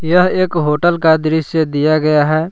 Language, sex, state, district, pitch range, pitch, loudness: Hindi, male, Jharkhand, Palamu, 155-170 Hz, 160 Hz, -14 LUFS